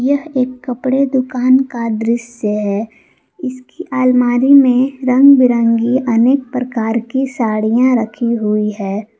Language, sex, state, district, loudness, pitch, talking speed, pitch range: Hindi, female, Jharkhand, Palamu, -14 LUFS, 250 Hz, 125 wpm, 230-260 Hz